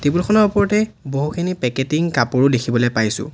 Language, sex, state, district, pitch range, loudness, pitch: Assamese, male, Assam, Sonitpur, 125-180 Hz, -18 LUFS, 145 Hz